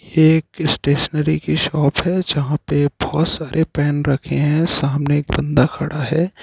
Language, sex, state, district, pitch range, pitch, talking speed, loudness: Hindi, male, Bihar, Jahanabad, 145-160 Hz, 150 Hz, 160 wpm, -18 LUFS